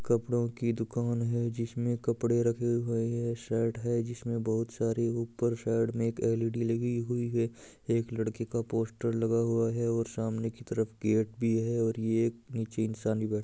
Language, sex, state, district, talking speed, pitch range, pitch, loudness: Hindi, male, Rajasthan, Churu, 200 wpm, 115-120 Hz, 115 Hz, -31 LUFS